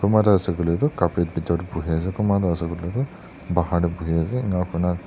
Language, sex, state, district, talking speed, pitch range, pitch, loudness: Nagamese, male, Nagaland, Dimapur, 235 wpm, 85-100 Hz, 85 Hz, -23 LUFS